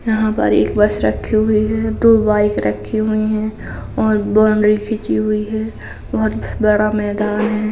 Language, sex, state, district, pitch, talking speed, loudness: Hindi, female, Uttar Pradesh, Jalaun, 210 Hz, 165 wpm, -16 LUFS